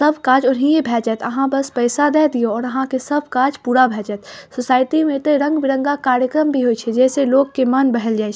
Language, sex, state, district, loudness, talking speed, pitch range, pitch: Maithili, female, Bihar, Saharsa, -17 LUFS, 230 wpm, 250-285 Hz, 265 Hz